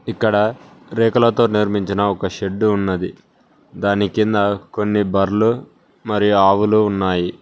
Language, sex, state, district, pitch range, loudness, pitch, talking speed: Telugu, male, Telangana, Mahabubabad, 100-110 Hz, -17 LUFS, 105 Hz, 105 wpm